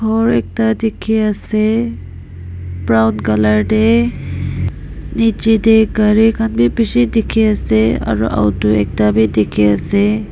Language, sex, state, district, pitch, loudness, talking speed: Nagamese, female, Nagaland, Dimapur, 120 Hz, -14 LUFS, 120 wpm